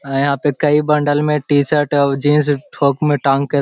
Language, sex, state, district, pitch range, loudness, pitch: Hindi, male, Bihar, Jahanabad, 140-150 Hz, -15 LUFS, 145 Hz